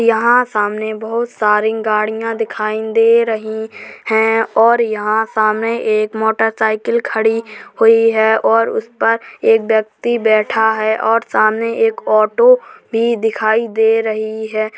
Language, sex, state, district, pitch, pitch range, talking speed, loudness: Hindi, female, Uttar Pradesh, Jalaun, 220 Hz, 220-230 Hz, 135 wpm, -15 LUFS